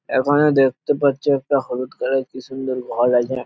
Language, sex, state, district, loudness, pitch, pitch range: Bengali, male, West Bengal, Purulia, -19 LUFS, 130 Hz, 130-140 Hz